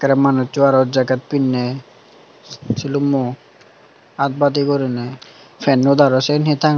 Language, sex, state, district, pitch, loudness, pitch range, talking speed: Chakma, male, Tripura, Dhalai, 140 Hz, -17 LUFS, 130-145 Hz, 140 wpm